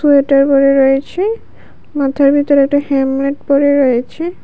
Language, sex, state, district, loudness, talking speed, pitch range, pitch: Bengali, female, Tripura, West Tripura, -12 LUFS, 120 wpm, 275-285 Hz, 280 Hz